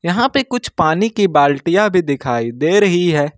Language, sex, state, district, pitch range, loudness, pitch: Hindi, male, Jharkhand, Ranchi, 145-210 Hz, -15 LUFS, 175 Hz